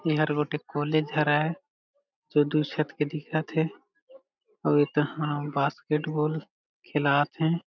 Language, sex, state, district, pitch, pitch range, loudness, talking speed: Chhattisgarhi, male, Chhattisgarh, Jashpur, 155 Hz, 150-160 Hz, -27 LUFS, 135 wpm